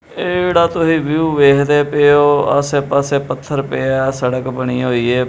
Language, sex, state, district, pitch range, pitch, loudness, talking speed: Punjabi, male, Punjab, Kapurthala, 130-150 Hz, 140 Hz, -14 LUFS, 180 wpm